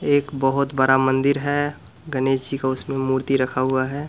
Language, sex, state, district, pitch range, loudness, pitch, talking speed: Hindi, male, Bihar, Muzaffarpur, 130-140 Hz, -21 LUFS, 135 Hz, 190 wpm